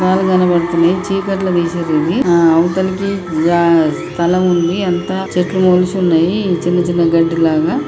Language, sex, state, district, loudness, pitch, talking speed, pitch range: Telugu, female, Telangana, Nalgonda, -14 LUFS, 175 Hz, 130 wpm, 170-185 Hz